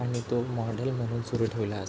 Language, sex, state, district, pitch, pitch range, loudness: Marathi, male, Maharashtra, Chandrapur, 120 Hz, 115-120 Hz, -30 LUFS